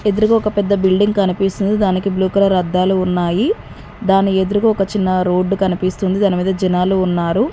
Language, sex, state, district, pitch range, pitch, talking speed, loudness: Telugu, female, Telangana, Mahabubabad, 185-200 Hz, 190 Hz, 150 wpm, -16 LUFS